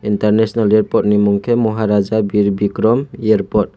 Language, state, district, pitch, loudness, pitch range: Kokborok, Tripura, West Tripura, 110 Hz, -15 LUFS, 105-110 Hz